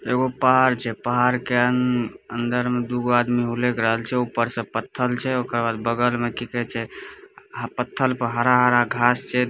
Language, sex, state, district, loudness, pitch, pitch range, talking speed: Maithili, male, Bihar, Purnia, -22 LUFS, 120 Hz, 120-125 Hz, 175 wpm